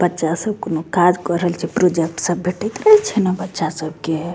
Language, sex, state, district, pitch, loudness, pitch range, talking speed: Maithili, female, Bihar, Begusarai, 175 Hz, -18 LUFS, 165-185 Hz, 235 wpm